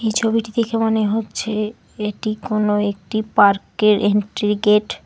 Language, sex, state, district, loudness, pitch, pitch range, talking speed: Bengali, female, West Bengal, Alipurduar, -19 LUFS, 215 Hz, 210-220 Hz, 145 wpm